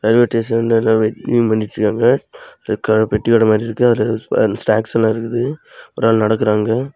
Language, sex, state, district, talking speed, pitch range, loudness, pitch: Tamil, male, Tamil Nadu, Kanyakumari, 155 wpm, 110-115 Hz, -16 LUFS, 115 Hz